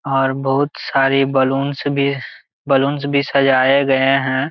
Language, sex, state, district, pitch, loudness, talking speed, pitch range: Hindi, male, Jharkhand, Jamtara, 135 Hz, -16 LUFS, 135 wpm, 135-140 Hz